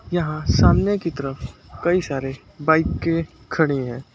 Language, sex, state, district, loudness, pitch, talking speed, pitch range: Hindi, male, Uttar Pradesh, Lucknow, -21 LUFS, 155 Hz, 130 wpm, 135-165 Hz